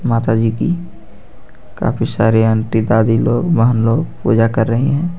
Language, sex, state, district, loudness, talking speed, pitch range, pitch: Hindi, male, Jharkhand, Garhwa, -15 LUFS, 160 wpm, 110-135 Hz, 115 Hz